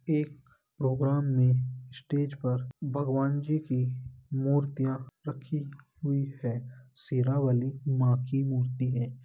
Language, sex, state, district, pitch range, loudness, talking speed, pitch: Hindi, male, Uttar Pradesh, Muzaffarnagar, 125-140 Hz, -30 LUFS, 125 wpm, 135 Hz